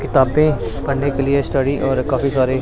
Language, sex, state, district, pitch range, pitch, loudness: Hindi, male, Punjab, Pathankot, 130-140 Hz, 135 Hz, -18 LUFS